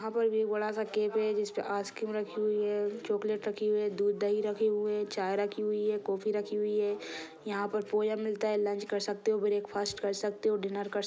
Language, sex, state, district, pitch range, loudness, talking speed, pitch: Hindi, male, Maharashtra, Solapur, 205-215 Hz, -32 LUFS, 255 wpm, 210 Hz